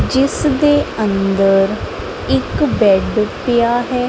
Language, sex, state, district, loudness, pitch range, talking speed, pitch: Punjabi, female, Punjab, Kapurthala, -15 LUFS, 195-260 Hz, 105 wpm, 235 Hz